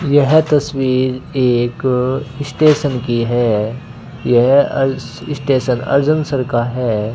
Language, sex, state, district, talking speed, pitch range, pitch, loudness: Hindi, male, Rajasthan, Bikaner, 100 wpm, 120-140 Hz, 130 Hz, -15 LUFS